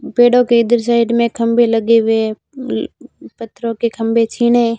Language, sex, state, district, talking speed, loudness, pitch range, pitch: Hindi, female, Rajasthan, Barmer, 175 wpm, -14 LUFS, 230-240 Hz, 235 Hz